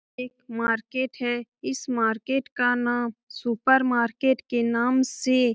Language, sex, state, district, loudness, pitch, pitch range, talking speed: Hindi, female, Bihar, Lakhisarai, -25 LUFS, 245 Hz, 235-260 Hz, 140 wpm